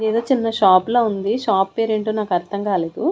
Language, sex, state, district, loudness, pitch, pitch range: Telugu, female, Andhra Pradesh, Sri Satya Sai, -19 LUFS, 215 Hz, 195-225 Hz